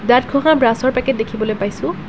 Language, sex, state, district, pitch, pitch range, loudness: Assamese, female, Assam, Kamrup Metropolitan, 235 Hz, 215-260 Hz, -16 LUFS